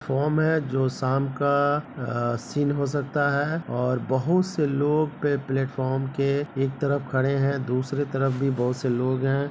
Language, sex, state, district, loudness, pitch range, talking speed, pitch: Hindi, male, Bihar, Begusarai, -25 LUFS, 130-145 Hz, 175 wpm, 140 Hz